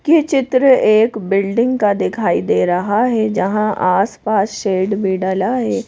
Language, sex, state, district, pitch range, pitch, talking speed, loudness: Hindi, female, Madhya Pradesh, Bhopal, 190-235 Hz, 210 Hz, 155 wpm, -15 LUFS